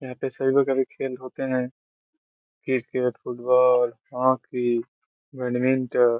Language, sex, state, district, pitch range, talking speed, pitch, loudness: Hindi, male, Bihar, Saran, 125-130 Hz, 135 wpm, 130 Hz, -24 LUFS